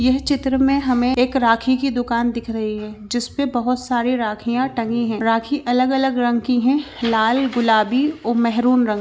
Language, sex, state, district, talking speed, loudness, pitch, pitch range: Hindi, female, Chhattisgarh, Bilaspur, 195 wpm, -19 LUFS, 245 Hz, 230-260 Hz